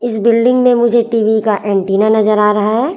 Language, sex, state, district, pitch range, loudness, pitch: Hindi, female, Chhattisgarh, Raipur, 210-235 Hz, -12 LUFS, 220 Hz